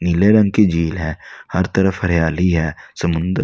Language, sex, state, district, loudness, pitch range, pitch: Hindi, male, Delhi, New Delhi, -17 LUFS, 85-95 Hz, 90 Hz